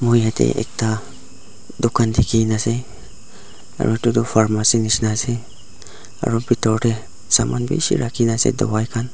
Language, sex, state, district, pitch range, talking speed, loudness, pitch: Nagamese, male, Nagaland, Dimapur, 110-120 Hz, 140 wpm, -19 LUFS, 115 Hz